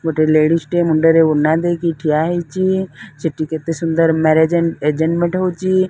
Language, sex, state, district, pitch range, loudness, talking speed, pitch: Odia, female, Odisha, Sambalpur, 160-175 Hz, -16 LUFS, 150 wpm, 165 Hz